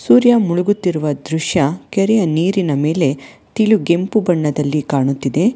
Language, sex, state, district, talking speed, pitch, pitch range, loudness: Kannada, female, Karnataka, Bangalore, 110 wpm, 170 Hz, 150-200 Hz, -16 LUFS